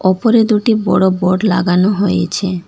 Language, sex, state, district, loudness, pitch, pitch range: Bengali, female, West Bengal, Alipurduar, -13 LUFS, 190 Hz, 180-210 Hz